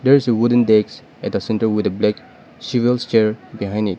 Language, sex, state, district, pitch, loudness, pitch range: English, male, Nagaland, Dimapur, 110 Hz, -18 LUFS, 105-120 Hz